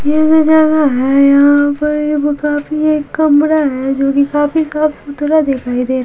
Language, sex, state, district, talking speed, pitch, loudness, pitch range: Hindi, female, Bihar, Patna, 170 wpm, 295 Hz, -12 LUFS, 280-305 Hz